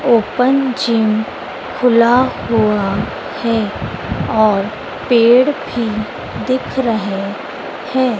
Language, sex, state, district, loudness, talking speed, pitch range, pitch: Hindi, female, Madhya Pradesh, Dhar, -16 LUFS, 80 wpm, 215-250 Hz, 230 Hz